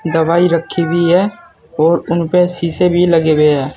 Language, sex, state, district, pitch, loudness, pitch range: Hindi, male, Uttar Pradesh, Saharanpur, 170 Hz, -13 LUFS, 165-175 Hz